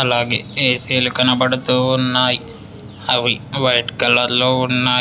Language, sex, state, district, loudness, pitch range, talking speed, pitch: Telugu, male, Telangana, Hyderabad, -16 LUFS, 120-130 Hz, 95 wpm, 125 Hz